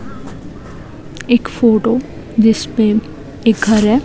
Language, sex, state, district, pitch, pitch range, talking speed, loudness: Hindi, female, Himachal Pradesh, Shimla, 225 Hz, 220-235 Hz, 75 wpm, -14 LUFS